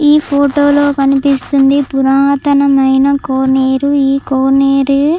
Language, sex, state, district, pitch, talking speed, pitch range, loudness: Telugu, female, Andhra Pradesh, Chittoor, 275 Hz, 90 wpm, 270-285 Hz, -11 LUFS